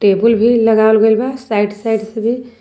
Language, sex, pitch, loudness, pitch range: Sadri, female, 220 Hz, -13 LUFS, 220-235 Hz